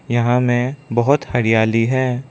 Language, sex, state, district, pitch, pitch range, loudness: Hindi, male, Arunachal Pradesh, Lower Dibang Valley, 120 Hz, 120-130 Hz, -17 LUFS